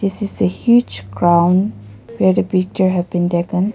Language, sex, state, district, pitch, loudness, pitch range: English, female, Nagaland, Kohima, 175 Hz, -16 LUFS, 115-185 Hz